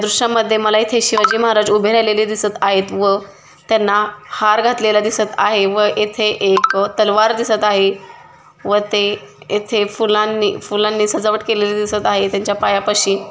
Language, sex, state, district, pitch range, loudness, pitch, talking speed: Marathi, female, Maharashtra, Pune, 205-220 Hz, -15 LUFS, 210 Hz, 150 wpm